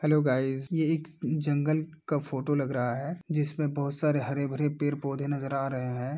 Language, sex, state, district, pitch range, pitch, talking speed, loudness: Hindi, male, Uttar Pradesh, Etah, 135-150 Hz, 145 Hz, 205 wpm, -30 LUFS